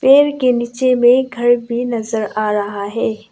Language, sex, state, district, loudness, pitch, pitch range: Hindi, female, Arunachal Pradesh, Lower Dibang Valley, -16 LUFS, 240 Hz, 220-255 Hz